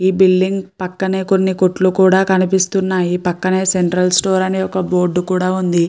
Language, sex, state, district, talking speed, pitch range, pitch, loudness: Telugu, female, Andhra Pradesh, Guntur, 145 wpm, 180-190 Hz, 185 Hz, -15 LUFS